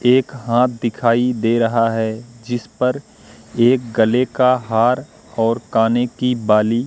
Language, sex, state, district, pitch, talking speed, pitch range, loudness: Hindi, male, Madhya Pradesh, Katni, 120 Hz, 140 wpm, 115-125 Hz, -17 LUFS